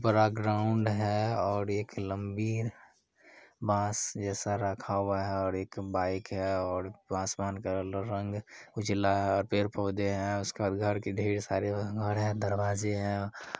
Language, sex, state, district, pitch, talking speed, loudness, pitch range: Hindi, male, Bihar, Supaul, 100 Hz, 150 wpm, -32 LUFS, 100-105 Hz